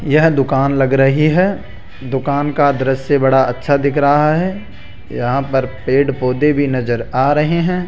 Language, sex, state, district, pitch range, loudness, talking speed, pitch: Hindi, male, Rajasthan, Jaipur, 135-150 Hz, -15 LUFS, 170 wpm, 140 Hz